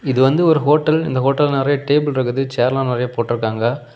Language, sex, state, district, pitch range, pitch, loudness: Tamil, male, Tamil Nadu, Kanyakumari, 125-145 Hz, 135 Hz, -17 LUFS